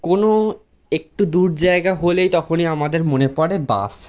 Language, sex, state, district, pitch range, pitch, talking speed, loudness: Bengali, male, West Bengal, Jhargram, 160-185 Hz, 175 Hz, 160 wpm, -18 LUFS